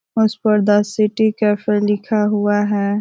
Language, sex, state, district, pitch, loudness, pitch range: Hindi, female, Uttar Pradesh, Ghazipur, 210 Hz, -17 LUFS, 205-215 Hz